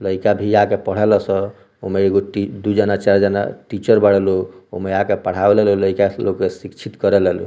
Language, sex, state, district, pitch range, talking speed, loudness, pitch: Bhojpuri, male, Bihar, Muzaffarpur, 95-100 Hz, 215 wpm, -17 LUFS, 100 Hz